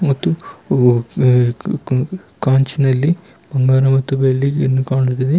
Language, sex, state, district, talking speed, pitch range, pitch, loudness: Kannada, male, Karnataka, Bidar, 80 wpm, 130-140 Hz, 130 Hz, -16 LUFS